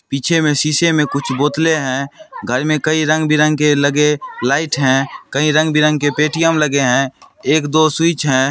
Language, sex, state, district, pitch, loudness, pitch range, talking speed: Hindi, male, Bihar, Supaul, 150 Hz, -15 LUFS, 140-155 Hz, 160 wpm